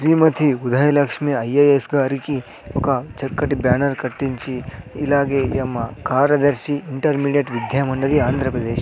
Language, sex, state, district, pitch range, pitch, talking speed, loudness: Telugu, male, Andhra Pradesh, Sri Satya Sai, 130-145 Hz, 135 Hz, 100 wpm, -19 LUFS